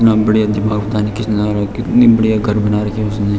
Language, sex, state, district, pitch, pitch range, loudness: Hindi, male, Uttarakhand, Tehri Garhwal, 105 Hz, 105-110 Hz, -14 LUFS